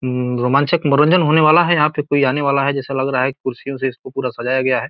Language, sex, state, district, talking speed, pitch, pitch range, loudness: Hindi, male, Bihar, Gopalganj, 280 wpm, 135 Hz, 130-145 Hz, -16 LUFS